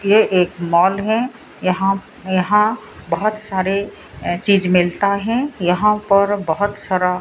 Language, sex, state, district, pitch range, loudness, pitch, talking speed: Hindi, female, Odisha, Sambalpur, 180-210 Hz, -18 LUFS, 200 Hz, 135 wpm